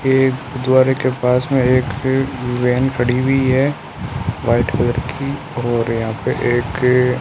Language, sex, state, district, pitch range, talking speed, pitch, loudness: Hindi, male, Rajasthan, Bikaner, 120-130 Hz, 150 wpm, 125 Hz, -17 LUFS